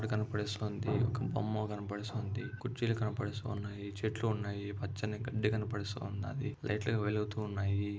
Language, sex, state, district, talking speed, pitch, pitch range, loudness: Telugu, male, Telangana, Nalgonda, 105 wpm, 105 Hz, 105-115 Hz, -37 LUFS